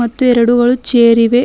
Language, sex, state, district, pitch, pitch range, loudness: Kannada, female, Karnataka, Bidar, 240 Hz, 235-245 Hz, -10 LUFS